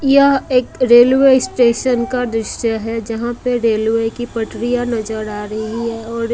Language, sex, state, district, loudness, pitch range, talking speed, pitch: Hindi, female, Odisha, Malkangiri, -16 LUFS, 225-250 Hz, 160 wpm, 235 Hz